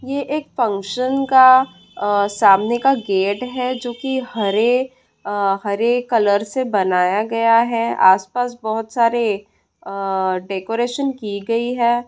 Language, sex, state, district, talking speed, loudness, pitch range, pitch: Hindi, female, Bihar, Jamui, 135 wpm, -18 LUFS, 200-250 Hz, 230 Hz